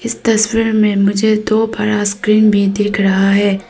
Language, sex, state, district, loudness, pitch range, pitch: Hindi, female, Arunachal Pradesh, Papum Pare, -13 LUFS, 200-220 Hz, 210 Hz